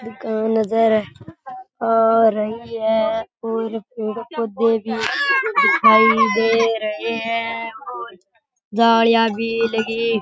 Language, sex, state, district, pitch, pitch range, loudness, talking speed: Rajasthani, male, Rajasthan, Nagaur, 225 Hz, 220-230 Hz, -18 LUFS, 105 wpm